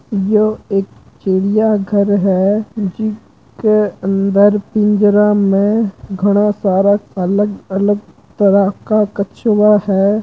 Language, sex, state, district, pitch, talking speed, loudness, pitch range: Marwari, male, Rajasthan, Churu, 205 Hz, 95 wpm, -14 LUFS, 195-210 Hz